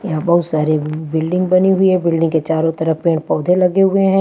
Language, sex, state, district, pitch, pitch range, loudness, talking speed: Hindi, female, Bihar, Patna, 165 Hz, 160-185 Hz, -15 LUFS, 225 wpm